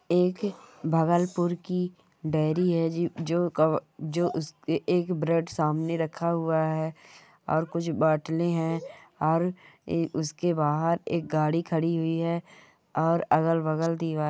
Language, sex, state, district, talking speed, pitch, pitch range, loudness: Hindi, female, Bihar, Bhagalpur, 135 wpm, 165 Hz, 160-170 Hz, -27 LUFS